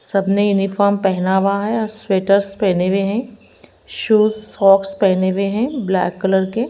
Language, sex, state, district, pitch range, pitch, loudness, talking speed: Hindi, female, Haryana, Rohtak, 190-215 Hz, 195 Hz, -17 LUFS, 160 wpm